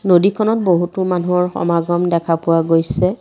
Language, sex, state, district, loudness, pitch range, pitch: Assamese, female, Assam, Kamrup Metropolitan, -16 LUFS, 170-185 Hz, 175 Hz